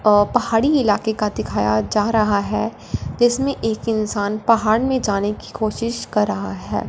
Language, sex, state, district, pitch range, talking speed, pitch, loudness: Hindi, female, Punjab, Fazilka, 205-230 Hz, 165 wpm, 215 Hz, -19 LUFS